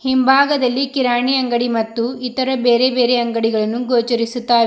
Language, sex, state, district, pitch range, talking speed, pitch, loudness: Kannada, female, Karnataka, Bidar, 235-260 Hz, 115 wpm, 245 Hz, -16 LUFS